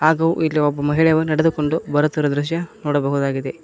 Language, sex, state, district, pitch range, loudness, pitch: Kannada, male, Karnataka, Koppal, 145-160 Hz, -19 LUFS, 155 Hz